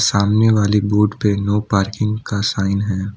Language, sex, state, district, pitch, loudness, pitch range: Hindi, male, Assam, Kamrup Metropolitan, 105 Hz, -17 LUFS, 100-105 Hz